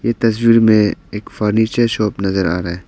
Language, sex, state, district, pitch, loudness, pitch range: Hindi, male, Arunachal Pradesh, Papum Pare, 105 Hz, -15 LUFS, 95-115 Hz